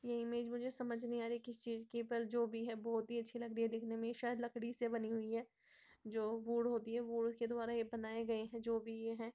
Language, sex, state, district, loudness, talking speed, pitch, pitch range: Hindi, female, Bihar, Begusarai, -42 LUFS, 280 wpm, 230 Hz, 230-235 Hz